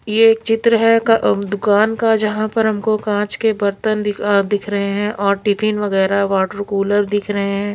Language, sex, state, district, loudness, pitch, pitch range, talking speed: Hindi, female, Bihar, Patna, -16 LUFS, 205 Hz, 200-220 Hz, 185 wpm